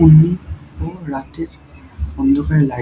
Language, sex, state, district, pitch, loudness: Bengali, male, West Bengal, Dakshin Dinajpur, 140 Hz, -17 LUFS